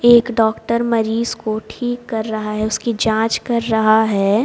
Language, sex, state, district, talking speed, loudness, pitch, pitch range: Hindi, female, Haryana, Jhajjar, 175 wpm, -17 LUFS, 225 Hz, 220-235 Hz